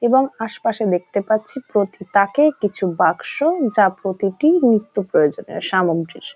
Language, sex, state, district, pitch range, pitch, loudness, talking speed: Bengali, female, West Bengal, North 24 Parganas, 190-245 Hz, 205 Hz, -19 LUFS, 115 wpm